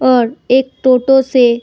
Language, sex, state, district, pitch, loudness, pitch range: Hindi, female, Uttar Pradesh, Budaun, 255 Hz, -12 LUFS, 245-265 Hz